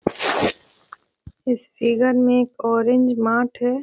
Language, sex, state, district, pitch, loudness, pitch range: Hindi, female, Bihar, Gaya, 245 Hz, -20 LUFS, 235-250 Hz